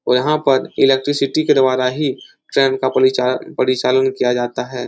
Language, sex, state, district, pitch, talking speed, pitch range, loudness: Hindi, male, Uttar Pradesh, Etah, 130 Hz, 160 wpm, 125-135 Hz, -16 LUFS